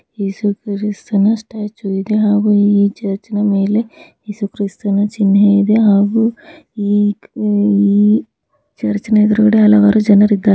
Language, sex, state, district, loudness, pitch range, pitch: Kannada, female, Karnataka, Gulbarga, -14 LUFS, 200-215 Hz, 205 Hz